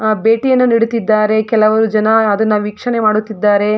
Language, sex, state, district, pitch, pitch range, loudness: Kannada, female, Karnataka, Mysore, 215 Hz, 215-225 Hz, -13 LUFS